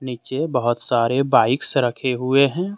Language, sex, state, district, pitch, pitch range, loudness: Hindi, male, Jharkhand, Deoghar, 130 Hz, 125-140 Hz, -19 LUFS